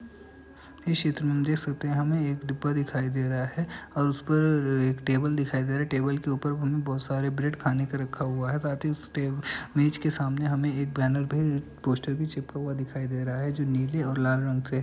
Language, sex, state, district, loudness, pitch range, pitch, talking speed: Hindi, male, Uttar Pradesh, Ghazipur, -28 LUFS, 135-145 Hz, 140 Hz, 245 wpm